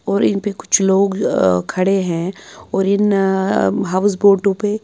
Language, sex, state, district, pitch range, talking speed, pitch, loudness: Hindi, female, Bihar, Patna, 190-200 Hz, 175 wpm, 195 Hz, -16 LUFS